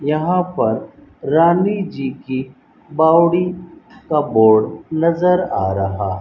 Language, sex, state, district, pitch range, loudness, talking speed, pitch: Hindi, male, Rajasthan, Bikaner, 130-175 Hz, -17 LUFS, 115 wpm, 155 Hz